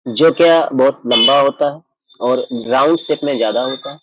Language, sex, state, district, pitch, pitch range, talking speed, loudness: Hindi, male, Uttar Pradesh, Jyotiba Phule Nagar, 140 Hz, 125-155 Hz, 180 wpm, -14 LUFS